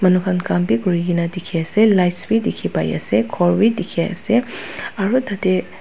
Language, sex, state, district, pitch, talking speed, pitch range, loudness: Nagamese, female, Nagaland, Dimapur, 185 Hz, 185 wpm, 175-220 Hz, -18 LUFS